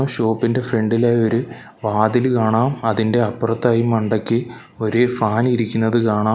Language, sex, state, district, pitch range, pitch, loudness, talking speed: Malayalam, male, Kerala, Kollam, 110-120 Hz, 115 Hz, -18 LUFS, 125 wpm